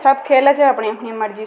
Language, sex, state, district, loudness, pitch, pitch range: Rajasthani, female, Rajasthan, Nagaur, -15 LUFS, 265 Hz, 215-275 Hz